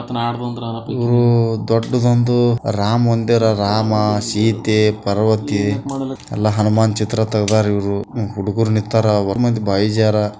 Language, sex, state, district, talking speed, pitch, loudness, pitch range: Kannada, male, Karnataka, Bijapur, 85 wpm, 110 Hz, -17 LUFS, 105-120 Hz